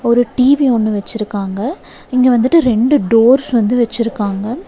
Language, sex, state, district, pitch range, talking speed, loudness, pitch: Tamil, female, Tamil Nadu, Nilgiris, 220-255 Hz, 130 wpm, -13 LUFS, 240 Hz